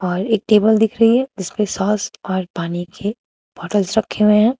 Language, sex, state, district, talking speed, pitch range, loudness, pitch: Hindi, female, Uttar Pradesh, Shamli, 195 wpm, 190-220 Hz, -18 LUFS, 210 Hz